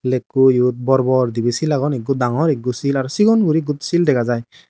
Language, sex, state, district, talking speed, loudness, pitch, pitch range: Chakma, male, Tripura, Dhalai, 215 wpm, -17 LUFS, 130 Hz, 125-150 Hz